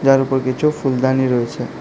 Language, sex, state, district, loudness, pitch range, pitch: Bengali, male, Tripura, South Tripura, -17 LUFS, 130-135 Hz, 130 Hz